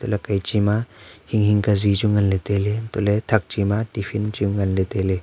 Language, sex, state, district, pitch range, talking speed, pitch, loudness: Wancho, male, Arunachal Pradesh, Longding, 100-105 Hz, 240 wpm, 105 Hz, -21 LUFS